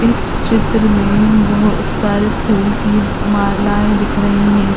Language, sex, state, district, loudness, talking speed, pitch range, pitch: Hindi, female, Uttar Pradesh, Hamirpur, -14 LUFS, 140 wpm, 205-210 Hz, 210 Hz